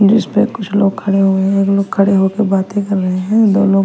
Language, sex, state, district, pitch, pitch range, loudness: Hindi, female, Bihar, West Champaran, 195 Hz, 195-205 Hz, -14 LUFS